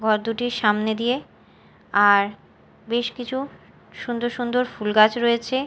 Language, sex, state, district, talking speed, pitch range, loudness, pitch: Bengali, female, Odisha, Malkangiri, 125 wpm, 215-245 Hz, -22 LUFS, 235 Hz